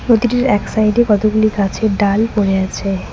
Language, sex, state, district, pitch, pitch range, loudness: Bengali, female, West Bengal, Cooch Behar, 215 Hz, 200-225 Hz, -15 LUFS